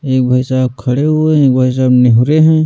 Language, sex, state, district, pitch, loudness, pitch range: Hindi, male, Delhi, New Delhi, 130 Hz, -11 LUFS, 125-155 Hz